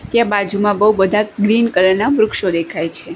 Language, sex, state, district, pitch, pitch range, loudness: Gujarati, female, Gujarat, Gandhinagar, 205 Hz, 185-215 Hz, -15 LUFS